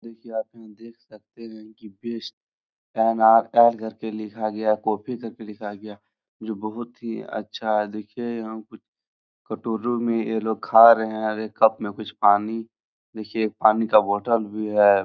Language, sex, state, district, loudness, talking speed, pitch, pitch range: Hindi, male, Bihar, Jahanabad, -22 LUFS, 185 wpm, 110 Hz, 110-115 Hz